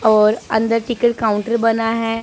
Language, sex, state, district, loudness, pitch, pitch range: Hindi, female, Punjab, Pathankot, -17 LUFS, 225 Hz, 220-230 Hz